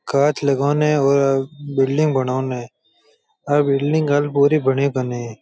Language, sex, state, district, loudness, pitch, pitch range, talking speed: Rajasthani, male, Rajasthan, Churu, -18 LUFS, 140 Hz, 135-145 Hz, 120 wpm